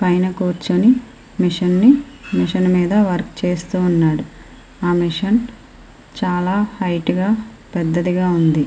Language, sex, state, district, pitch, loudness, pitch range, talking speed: Telugu, female, Andhra Pradesh, Srikakulam, 180 Hz, -17 LUFS, 175-210 Hz, 110 wpm